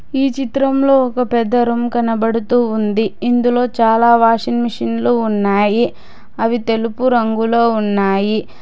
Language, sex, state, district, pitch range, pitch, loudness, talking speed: Telugu, female, Telangana, Hyderabad, 220-245 Hz, 230 Hz, -15 LUFS, 110 wpm